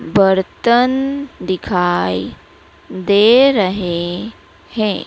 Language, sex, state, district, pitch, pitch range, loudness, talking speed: Hindi, female, Madhya Pradesh, Dhar, 200 Hz, 180-235 Hz, -15 LUFS, 60 wpm